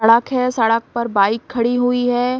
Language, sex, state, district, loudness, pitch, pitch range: Hindi, female, Uttar Pradesh, Gorakhpur, -17 LUFS, 240 Hz, 230-245 Hz